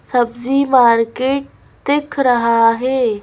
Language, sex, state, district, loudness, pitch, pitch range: Hindi, female, Madhya Pradesh, Bhopal, -15 LUFS, 250 Hz, 235-270 Hz